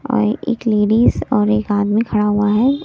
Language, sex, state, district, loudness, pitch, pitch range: Hindi, female, Delhi, New Delhi, -16 LUFS, 215 Hz, 210-235 Hz